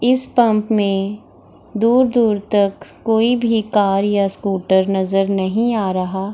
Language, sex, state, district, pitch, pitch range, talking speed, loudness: Hindi, female, Bihar, Gaya, 205 Hz, 195-230 Hz, 140 wpm, -17 LUFS